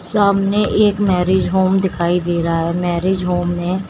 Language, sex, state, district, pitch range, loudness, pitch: Hindi, female, Uttar Pradesh, Shamli, 175-195 Hz, -16 LUFS, 185 Hz